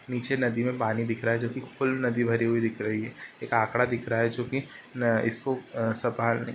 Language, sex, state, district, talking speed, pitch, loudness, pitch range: Hindi, male, Uttar Pradesh, Ghazipur, 210 wpm, 115 Hz, -28 LUFS, 115-125 Hz